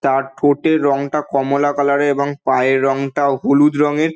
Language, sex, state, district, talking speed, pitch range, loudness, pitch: Bengali, male, West Bengal, Dakshin Dinajpur, 160 wpm, 135-145 Hz, -16 LUFS, 140 Hz